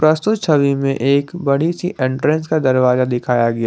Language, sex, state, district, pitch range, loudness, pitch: Hindi, male, Jharkhand, Garhwa, 130-155 Hz, -16 LUFS, 140 Hz